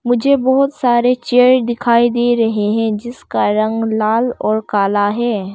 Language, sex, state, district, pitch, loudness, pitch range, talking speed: Hindi, female, Arunachal Pradesh, Longding, 235 Hz, -15 LUFS, 215-245 Hz, 150 wpm